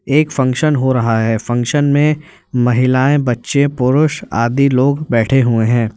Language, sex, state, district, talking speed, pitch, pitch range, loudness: Hindi, male, Uttar Pradesh, Lalitpur, 150 wpm, 130 Hz, 120-145 Hz, -14 LUFS